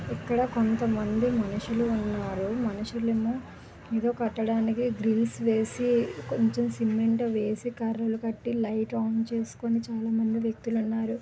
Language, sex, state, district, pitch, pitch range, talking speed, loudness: Telugu, female, Andhra Pradesh, Visakhapatnam, 225 Hz, 225-235 Hz, 50 wpm, -28 LUFS